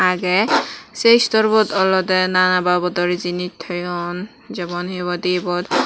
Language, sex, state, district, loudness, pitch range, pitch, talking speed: Chakma, female, Tripura, West Tripura, -18 LUFS, 180-190 Hz, 180 Hz, 125 wpm